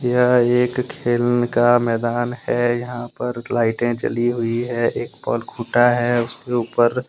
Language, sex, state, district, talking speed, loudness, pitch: Hindi, male, Jharkhand, Deoghar, 150 wpm, -20 LUFS, 120 Hz